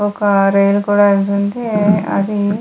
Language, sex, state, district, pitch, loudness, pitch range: Telugu, female, Andhra Pradesh, Guntur, 205 Hz, -14 LUFS, 200-205 Hz